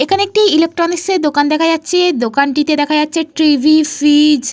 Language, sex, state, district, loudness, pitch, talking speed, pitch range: Bengali, female, Jharkhand, Jamtara, -12 LUFS, 305 Hz, 170 wpm, 295-335 Hz